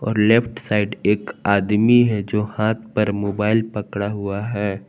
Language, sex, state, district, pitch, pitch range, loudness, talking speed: Hindi, male, Jharkhand, Palamu, 105 Hz, 100-110 Hz, -20 LUFS, 160 wpm